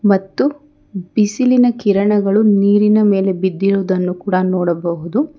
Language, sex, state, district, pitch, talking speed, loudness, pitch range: Kannada, female, Karnataka, Bangalore, 200 Hz, 90 wpm, -15 LUFS, 185-215 Hz